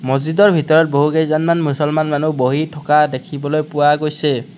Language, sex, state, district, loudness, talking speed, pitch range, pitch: Assamese, male, Assam, Kamrup Metropolitan, -16 LUFS, 130 wpm, 145-155 Hz, 150 Hz